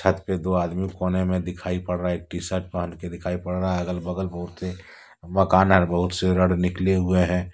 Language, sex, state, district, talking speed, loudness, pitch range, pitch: Hindi, male, Jharkhand, Deoghar, 255 wpm, -24 LUFS, 90-95 Hz, 90 Hz